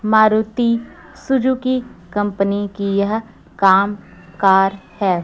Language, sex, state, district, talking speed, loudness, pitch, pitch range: Hindi, female, Chhattisgarh, Raipur, 90 wpm, -17 LUFS, 205 Hz, 195-225 Hz